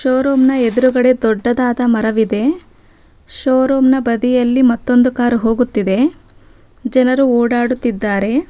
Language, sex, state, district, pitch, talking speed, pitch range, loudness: Kannada, female, Karnataka, Bangalore, 250 Hz, 100 wpm, 235-260 Hz, -14 LUFS